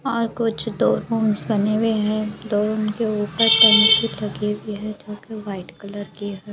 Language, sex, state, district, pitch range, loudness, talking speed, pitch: Hindi, female, Uttar Pradesh, Budaun, 205-225 Hz, -19 LUFS, 175 wpm, 215 Hz